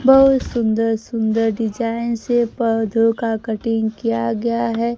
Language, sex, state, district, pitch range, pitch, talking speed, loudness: Hindi, female, Bihar, Kaimur, 225-235 Hz, 230 Hz, 130 wpm, -19 LUFS